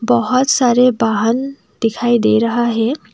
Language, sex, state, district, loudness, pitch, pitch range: Hindi, female, Assam, Kamrup Metropolitan, -15 LUFS, 235 Hz, 225-250 Hz